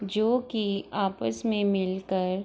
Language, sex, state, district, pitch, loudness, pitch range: Hindi, female, Bihar, East Champaran, 200 Hz, -28 LUFS, 190-215 Hz